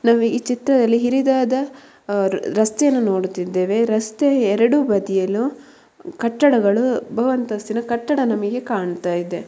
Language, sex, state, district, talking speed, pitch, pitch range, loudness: Kannada, female, Karnataka, Mysore, 95 wpm, 230 Hz, 205-255 Hz, -19 LUFS